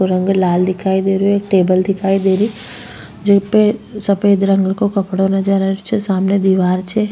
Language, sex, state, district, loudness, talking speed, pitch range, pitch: Rajasthani, female, Rajasthan, Nagaur, -15 LUFS, 185 wpm, 190-205 Hz, 195 Hz